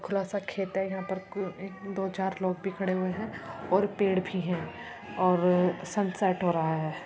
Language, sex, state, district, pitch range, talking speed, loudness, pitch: Hindi, female, Uttar Pradesh, Muzaffarnagar, 180-195 Hz, 185 wpm, -30 LUFS, 190 Hz